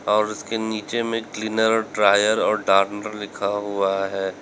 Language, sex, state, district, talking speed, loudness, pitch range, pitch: Hindi, male, Uttar Pradesh, Lalitpur, 150 wpm, -22 LUFS, 100-110 Hz, 105 Hz